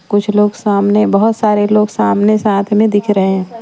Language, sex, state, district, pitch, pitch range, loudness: Hindi, female, Maharashtra, Washim, 210 Hz, 200-215 Hz, -12 LUFS